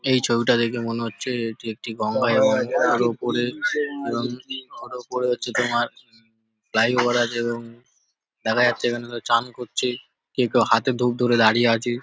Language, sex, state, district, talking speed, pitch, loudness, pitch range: Bengali, male, West Bengal, Paschim Medinipur, 160 wpm, 120 Hz, -22 LUFS, 115-125 Hz